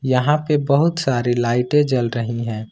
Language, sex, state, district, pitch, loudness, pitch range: Hindi, male, Jharkhand, Ranchi, 125 Hz, -19 LUFS, 120-145 Hz